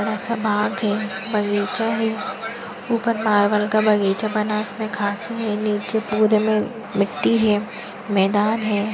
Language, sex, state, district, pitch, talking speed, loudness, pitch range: Hindi, female, Maharashtra, Nagpur, 215 Hz, 140 wpm, -21 LUFS, 205-225 Hz